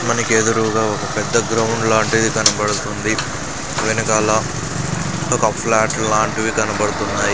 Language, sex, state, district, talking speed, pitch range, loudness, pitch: Telugu, male, Andhra Pradesh, Sri Satya Sai, 100 wpm, 110-115 Hz, -17 LUFS, 110 Hz